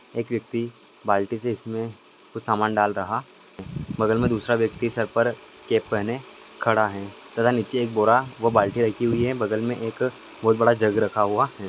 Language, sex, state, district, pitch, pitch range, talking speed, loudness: Hindi, male, Uttar Pradesh, Etah, 115 Hz, 110-120 Hz, 195 wpm, -24 LUFS